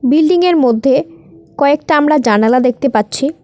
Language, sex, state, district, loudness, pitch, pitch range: Bengali, female, West Bengal, Cooch Behar, -12 LUFS, 275 Hz, 230-300 Hz